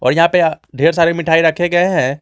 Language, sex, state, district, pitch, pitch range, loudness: Hindi, male, Jharkhand, Garhwa, 165 Hz, 150-170 Hz, -14 LUFS